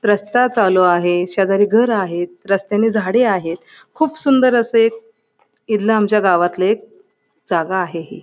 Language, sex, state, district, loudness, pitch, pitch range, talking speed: Marathi, female, Maharashtra, Pune, -16 LUFS, 210 Hz, 185-230 Hz, 145 wpm